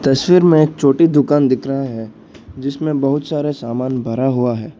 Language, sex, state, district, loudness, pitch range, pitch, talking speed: Hindi, male, Arunachal Pradesh, Lower Dibang Valley, -16 LUFS, 125-145 Hz, 135 Hz, 190 wpm